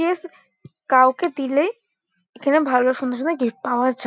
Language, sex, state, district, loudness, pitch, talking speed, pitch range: Bengali, female, West Bengal, Kolkata, -20 LUFS, 265 Hz, 145 wpm, 250-330 Hz